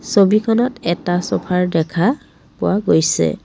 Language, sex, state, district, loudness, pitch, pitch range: Assamese, female, Assam, Kamrup Metropolitan, -17 LUFS, 180 Hz, 170-220 Hz